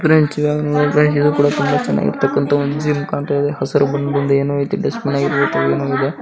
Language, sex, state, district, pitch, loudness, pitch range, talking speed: Kannada, male, Karnataka, Bijapur, 145 Hz, -16 LUFS, 140-150 Hz, 155 wpm